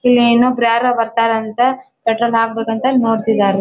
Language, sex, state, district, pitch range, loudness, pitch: Kannada, female, Karnataka, Dharwad, 225-245 Hz, -15 LUFS, 230 Hz